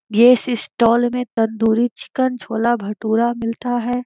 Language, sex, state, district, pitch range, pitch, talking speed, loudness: Hindi, female, Jharkhand, Sahebganj, 225-245 Hz, 235 Hz, 135 wpm, -18 LUFS